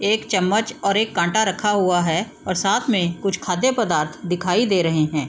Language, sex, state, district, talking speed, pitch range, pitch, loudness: Hindi, female, Bihar, East Champaran, 195 wpm, 175-215 Hz, 190 Hz, -20 LUFS